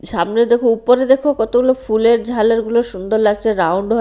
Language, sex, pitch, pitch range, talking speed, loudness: Bengali, female, 230 Hz, 220-240 Hz, 165 wpm, -15 LUFS